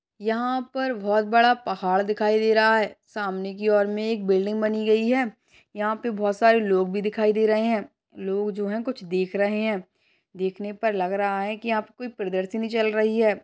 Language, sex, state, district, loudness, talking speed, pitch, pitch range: Hindi, male, Uttar Pradesh, Hamirpur, -24 LUFS, 215 wpm, 215 Hz, 200-225 Hz